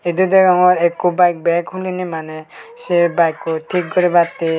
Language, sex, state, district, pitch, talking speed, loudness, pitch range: Chakma, male, Tripura, Dhalai, 175 Hz, 145 wpm, -15 LUFS, 165-180 Hz